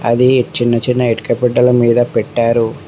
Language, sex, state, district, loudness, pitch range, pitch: Telugu, male, Telangana, Mahabubabad, -13 LUFS, 115-125 Hz, 120 Hz